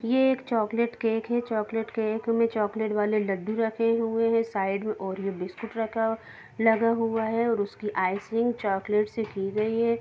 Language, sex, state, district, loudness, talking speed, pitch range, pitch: Hindi, female, Bihar, Gopalganj, -27 LUFS, 180 wpm, 210-230 Hz, 225 Hz